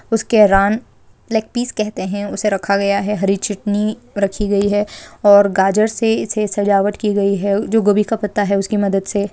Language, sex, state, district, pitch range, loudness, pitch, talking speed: Hindi, female, Rajasthan, Churu, 200-215 Hz, -16 LUFS, 205 Hz, 200 wpm